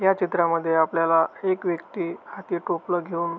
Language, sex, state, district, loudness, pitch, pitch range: Marathi, male, Maharashtra, Aurangabad, -24 LUFS, 170 Hz, 165-180 Hz